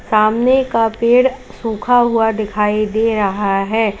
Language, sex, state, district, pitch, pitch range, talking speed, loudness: Hindi, female, Uttar Pradesh, Lalitpur, 225 Hz, 210-235 Hz, 135 wpm, -15 LUFS